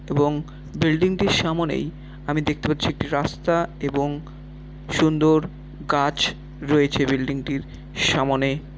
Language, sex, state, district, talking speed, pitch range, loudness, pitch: Bengali, male, West Bengal, Malda, 110 wpm, 140-155 Hz, -22 LUFS, 145 Hz